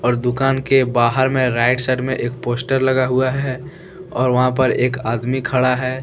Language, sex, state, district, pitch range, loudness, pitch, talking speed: Hindi, male, Jharkhand, Deoghar, 125-130 Hz, -17 LUFS, 130 Hz, 200 wpm